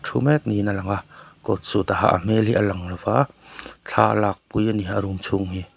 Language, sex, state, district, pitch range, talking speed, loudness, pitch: Mizo, male, Mizoram, Aizawl, 95-110 Hz, 270 wpm, -22 LUFS, 100 Hz